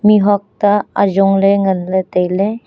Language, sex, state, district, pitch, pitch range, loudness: Wancho, female, Arunachal Pradesh, Longding, 200 Hz, 190-205 Hz, -14 LUFS